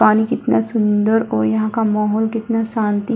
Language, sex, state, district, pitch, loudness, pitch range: Hindi, female, Bihar, Kishanganj, 220 Hz, -17 LUFS, 210-225 Hz